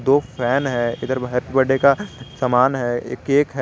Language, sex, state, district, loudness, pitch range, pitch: Hindi, male, Jharkhand, Garhwa, -19 LUFS, 125-140 Hz, 130 Hz